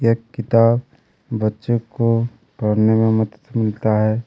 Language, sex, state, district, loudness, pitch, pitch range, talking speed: Hindi, male, Chhattisgarh, Kabirdham, -19 LUFS, 115 Hz, 110-115 Hz, 125 wpm